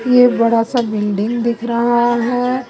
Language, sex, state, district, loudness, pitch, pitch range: Hindi, female, Chhattisgarh, Raipur, -15 LUFS, 235 Hz, 230-245 Hz